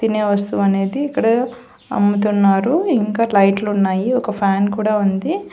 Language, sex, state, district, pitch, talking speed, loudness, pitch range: Telugu, female, Telangana, Hyderabad, 210 Hz, 120 wpm, -17 LUFS, 200-240 Hz